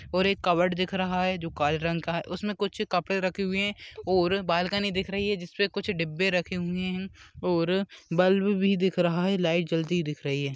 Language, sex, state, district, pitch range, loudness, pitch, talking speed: Hindi, male, Rajasthan, Churu, 175-195 Hz, -27 LUFS, 185 Hz, 225 wpm